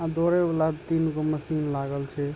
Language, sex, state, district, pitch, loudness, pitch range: Maithili, male, Bihar, Supaul, 155 Hz, -26 LUFS, 145-165 Hz